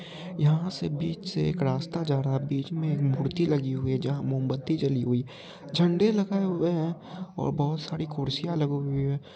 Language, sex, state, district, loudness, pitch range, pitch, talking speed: Hindi, male, Bihar, Purnia, -28 LUFS, 135-170 Hz, 150 Hz, 200 wpm